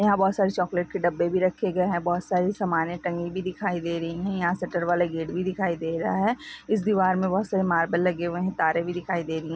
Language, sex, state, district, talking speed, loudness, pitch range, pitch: Hindi, female, Rajasthan, Nagaur, 270 wpm, -26 LUFS, 170-190 Hz, 180 Hz